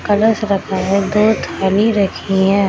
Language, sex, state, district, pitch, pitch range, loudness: Hindi, female, Bihar, Samastipur, 200 Hz, 195-210 Hz, -15 LUFS